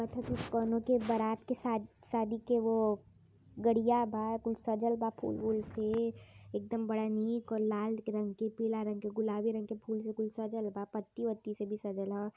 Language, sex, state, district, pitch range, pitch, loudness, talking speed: Hindi, female, Uttar Pradesh, Varanasi, 215-230 Hz, 220 Hz, -35 LUFS, 200 wpm